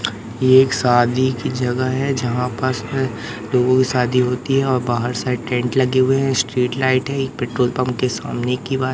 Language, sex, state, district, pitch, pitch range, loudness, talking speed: Hindi, male, Madhya Pradesh, Katni, 125 Hz, 125-130 Hz, -18 LUFS, 200 wpm